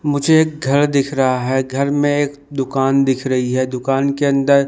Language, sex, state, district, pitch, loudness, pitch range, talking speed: Hindi, male, Madhya Pradesh, Dhar, 140 Hz, -17 LUFS, 130-145 Hz, 190 wpm